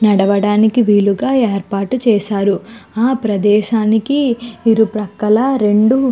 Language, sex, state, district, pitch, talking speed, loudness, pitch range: Telugu, female, Andhra Pradesh, Guntur, 215 Hz, 90 wpm, -14 LUFS, 205-235 Hz